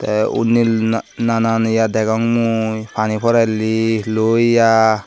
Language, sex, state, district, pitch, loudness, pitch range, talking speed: Chakma, male, Tripura, Dhalai, 110 Hz, -16 LUFS, 110-115 Hz, 120 wpm